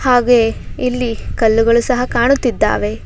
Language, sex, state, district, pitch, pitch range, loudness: Kannada, female, Karnataka, Bangalore, 235 Hz, 225-250 Hz, -15 LUFS